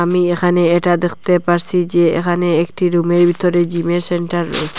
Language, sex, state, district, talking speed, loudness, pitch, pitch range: Bengali, female, Assam, Hailakandi, 165 wpm, -15 LUFS, 175 Hz, 170-175 Hz